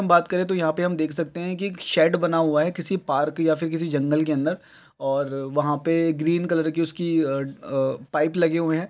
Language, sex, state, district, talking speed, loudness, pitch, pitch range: Maithili, male, Bihar, Araria, 245 wpm, -23 LUFS, 165 Hz, 150-175 Hz